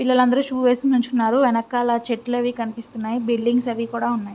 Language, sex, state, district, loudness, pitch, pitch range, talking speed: Telugu, female, Andhra Pradesh, Visakhapatnam, -21 LUFS, 240 Hz, 230-250 Hz, 180 wpm